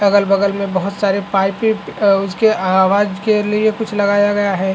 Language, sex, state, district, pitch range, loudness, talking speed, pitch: Hindi, male, Chhattisgarh, Bastar, 195-210 Hz, -15 LUFS, 175 wpm, 200 Hz